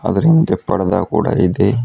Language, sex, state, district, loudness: Kannada, female, Karnataka, Bidar, -15 LUFS